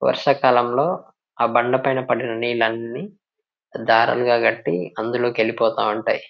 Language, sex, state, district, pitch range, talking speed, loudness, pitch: Telugu, male, Telangana, Nalgonda, 115-130 Hz, 105 wpm, -20 LUFS, 120 Hz